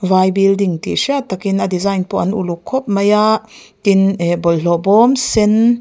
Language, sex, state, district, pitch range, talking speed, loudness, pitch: Mizo, female, Mizoram, Aizawl, 185-220 Hz, 185 wpm, -15 LUFS, 195 Hz